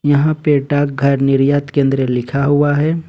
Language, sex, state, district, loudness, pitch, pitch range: Hindi, male, Jharkhand, Ranchi, -15 LUFS, 145 Hz, 135-145 Hz